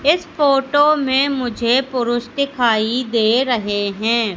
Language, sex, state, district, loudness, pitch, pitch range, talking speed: Hindi, female, Madhya Pradesh, Katni, -17 LUFS, 245 Hz, 230-275 Hz, 125 wpm